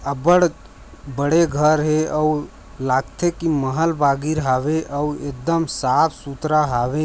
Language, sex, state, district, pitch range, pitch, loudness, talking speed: Chhattisgarhi, male, Chhattisgarh, Raigarh, 140-155 Hz, 150 Hz, -20 LUFS, 125 wpm